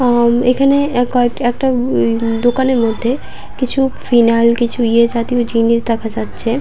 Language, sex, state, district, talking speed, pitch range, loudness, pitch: Bengali, female, West Bengal, Purulia, 135 wpm, 230-250 Hz, -14 LUFS, 240 Hz